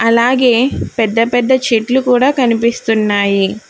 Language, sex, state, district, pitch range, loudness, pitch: Telugu, female, Telangana, Hyderabad, 225-250 Hz, -13 LUFS, 235 Hz